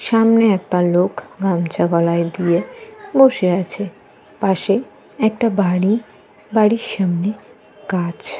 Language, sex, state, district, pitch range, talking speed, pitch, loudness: Bengali, female, Jharkhand, Jamtara, 180-225 Hz, 100 wpm, 200 Hz, -18 LUFS